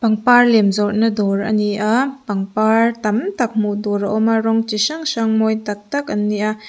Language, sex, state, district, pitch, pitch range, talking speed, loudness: Mizo, female, Mizoram, Aizawl, 215 Hz, 210-225 Hz, 225 wpm, -17 LUFS